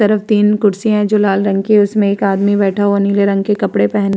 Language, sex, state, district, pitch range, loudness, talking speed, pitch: Hindi, female, Uttar Pradesh, Varanasi, 200-210 Hz, -13 LUFS, 300 wpm, 205 Hz